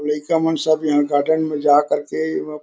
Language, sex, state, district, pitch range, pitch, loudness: Chhattisgarhi, male, Chhattisgarh, Korba, 145-155 Hz, 150 Hz, -18 LUFS